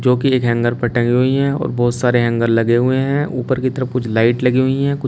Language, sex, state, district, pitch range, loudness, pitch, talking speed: Hindi, male, Uttar Pradesh, Shamli, 120-130 Hz, -16 LUFS, 125 Hz, 285 wpm